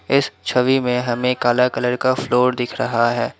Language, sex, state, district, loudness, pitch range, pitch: Hindi, male, Assam, Kamrup Metropolitan, -18 LUFS, 120-125 Hz, 125 Hz